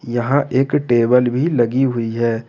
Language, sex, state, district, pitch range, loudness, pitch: Hindi, male, Jharkhand, Ranchi, 120-135 Hz, -17 LUFS, 120 Hz